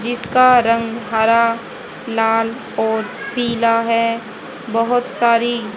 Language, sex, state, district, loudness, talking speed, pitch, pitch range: Hindi, female, Haryana, Rohtak, -17 LUFS, 95 wpm, 230 Hz, 225-235 Hz